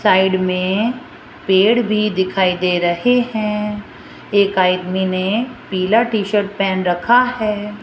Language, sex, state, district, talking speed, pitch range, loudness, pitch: Hindi, female, Rajasthan, Jaipur, 125 wpm, 185-220 Hz, -17 LUFS, 200 Hz